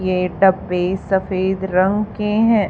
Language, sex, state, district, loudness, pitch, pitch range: Hindi, female, Haryana, Charkhi Dadri, -18 LUFS, 190 Hz, 185-205 Hz